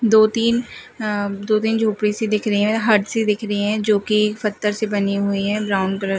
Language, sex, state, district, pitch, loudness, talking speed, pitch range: Hindi, female, Bihar, Gopalganj, 210 Hz, -19 LUFS, 230 wpm, 205-220 Hz